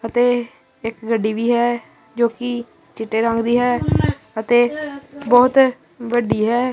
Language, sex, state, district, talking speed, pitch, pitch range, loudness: Punjabi, female, Punjab, Kapurthala, 135 wpm, 240 Hz, 230-245 Hz, -18 LUFS